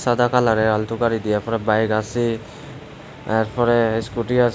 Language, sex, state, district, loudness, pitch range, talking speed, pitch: Bengali, male, Tripura, West Tripura, -20 LUFS, 110-120 Hz, 145 wpm, 115 Hz